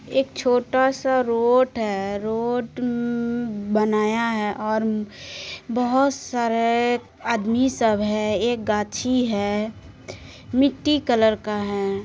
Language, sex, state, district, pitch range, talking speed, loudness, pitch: Maithili, female, Bihar, Supaul, 215-245 Hz, 100 wpm, -22 LUFS, 230 Hz